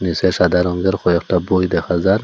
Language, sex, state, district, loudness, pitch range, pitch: Bengali, male, Assam, Hailakandi, -17 LUFS, 90-95 Hz, 90 Hz